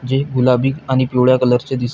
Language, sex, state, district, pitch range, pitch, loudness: Marathi, male, Maharashtra, Pune, 125-130 Hz, 130 Hz, -15 LUFS